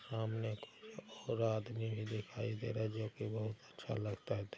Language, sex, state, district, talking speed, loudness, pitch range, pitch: Hindi, male, Bihar, Araria, 185 wpm, -42 LUFS, 110-115 Hz, 110 Hz